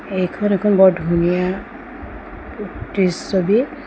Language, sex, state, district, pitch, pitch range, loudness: Assamese, female, Assam, Sonitpur, 190 Hz, 180-205 Hz, -17 LUFS